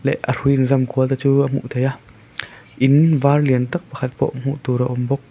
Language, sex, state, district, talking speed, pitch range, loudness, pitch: Mizo, male, Mizoram, Aizawl, 260 wpm, 125-140 Hz, -18 LUFS, 135 Hz